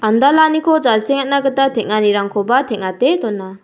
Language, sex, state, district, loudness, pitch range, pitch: Garo, female, Meghalaya, South Garo Hills, -15 LUFS, 205-275 Hz, 230 Hz